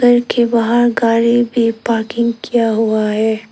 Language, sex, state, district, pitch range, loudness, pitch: Hindi, female, Arunachal Pradesh, Lower Dibang Valley, 225-235 Hz, -14 LUFS, 230 Hz